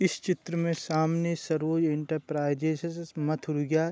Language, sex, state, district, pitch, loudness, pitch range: Hindi, male, Uttar Pradesh, Budaun, 160 Hz, -29 LUFS, 155-170 Hz